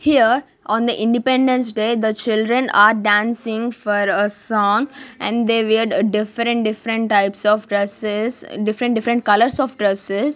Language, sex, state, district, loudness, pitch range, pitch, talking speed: English, female, Maharashtra, Gondia, -18 LUFS, 210-240 Hz, 220 Hz, 145 wpm